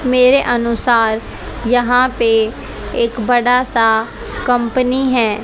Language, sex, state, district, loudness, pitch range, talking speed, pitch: Hindi, female, Haryana, Charkhi Dadri, -14 LUFS, 230-250 Hz, 100 wpm, 240 Hz